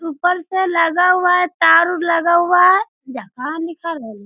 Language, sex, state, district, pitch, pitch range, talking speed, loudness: Hindi, female, Bihar, Sitamarhi, 340 Hz, 325-360 Hz, 185 wpm, -15 LUFS